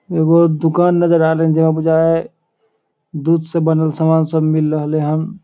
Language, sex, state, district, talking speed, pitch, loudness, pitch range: Maithili, male, Bihar, Samastipur, 175 wpm, 160 Hz, -15 LUFS, 160-170 Hz